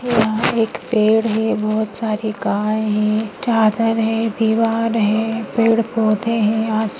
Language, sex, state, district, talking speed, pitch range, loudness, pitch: Hindi, female, Maharashtra, Nagpur, 135 wpm, 215-225 Hz, -18 LUFS, 220 Hz